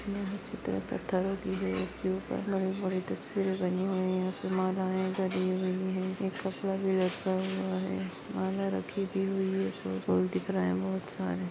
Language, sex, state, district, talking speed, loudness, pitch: Hindi, female, Maharashtra, Pune, 180 wpm, -32 LUFS, 185 Hz